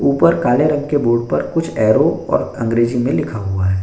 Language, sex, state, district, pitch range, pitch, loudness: Hindi, male, Bihar, Bhagalpur, 110-145 Hz, 120 Hz, -16 LUFS